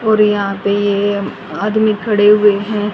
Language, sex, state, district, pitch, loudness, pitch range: Hindi, female, Haryana, Rohtak, 205 Hz, -14 LUFS, 200-210 Hz